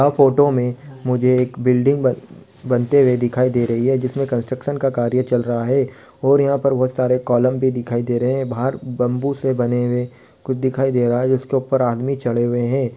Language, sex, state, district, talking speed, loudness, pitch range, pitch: Hindi, male, Bihar, Kishanganj, 215 wpm, -18 LUFS, 125-135 Hz, 130 Hz